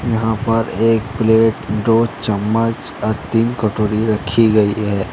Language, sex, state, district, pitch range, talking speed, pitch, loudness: Hindi, male, Jharkhand, Deoghar, 105-115 Hz, 140 wpm, 110 Hz, -16 LUFS